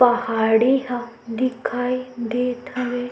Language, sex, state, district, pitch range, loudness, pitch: Chhattisgarhi, female, Chhattisgarh, Sukma, 240-250 Hz, -22 LUFS, 245 Hz